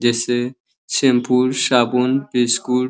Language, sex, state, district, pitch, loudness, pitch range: Bhojpuri, male, Uttar Pradesh, Deoria, 125 Hz, -17 LUFS, 120-125 Hz